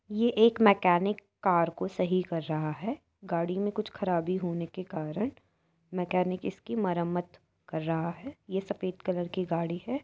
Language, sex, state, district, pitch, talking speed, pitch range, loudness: Hindi, female, Uttar Pradesh, Etah, 185 Hz, 165 wpm, 170-205 Hz, -30 LUFS